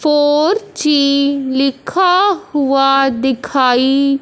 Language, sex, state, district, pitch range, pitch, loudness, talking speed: Hindi, male, Punjab, Fazilka, 270-305 Hz, 280 Hz, -13 LUFS, 70 wpm